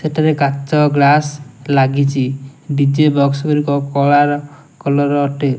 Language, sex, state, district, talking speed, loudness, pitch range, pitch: Odia, male, Odisha, Nuapada, 105 wpm, -15 LUFS, 140-150 Hz, 145 Hz